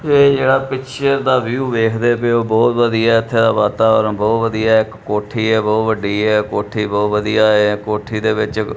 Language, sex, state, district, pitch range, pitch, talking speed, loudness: Punjabi, male, Punjab, Kapurthala, 105-120 Hz, 110 Hz, 220 wpm, -15 LUFS